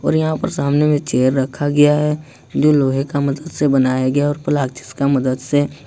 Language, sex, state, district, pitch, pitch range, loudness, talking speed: Hindi, male, Jharkhand, Ranchi, 145 Hz, 135-150 Hz, -17 LUFS, 225 wpm